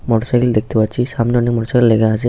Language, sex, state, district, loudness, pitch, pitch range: Bengali, male, West Bengal, Paschim Medinipur, -15 LUFS, 120 Hz, 110-120 Hz